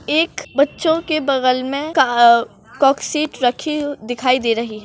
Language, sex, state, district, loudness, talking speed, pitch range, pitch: Hindi, female, Maharashtra, Solapur, -17 LUFS, 125 wpm, 245-300 Hz, 275 Hz